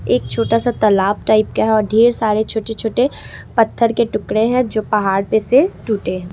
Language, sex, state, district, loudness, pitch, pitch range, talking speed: Hindi, female, Jharkhand, Ranchi, -16 LUFS, 220 Hz, 210-230 Hz, 200 wpm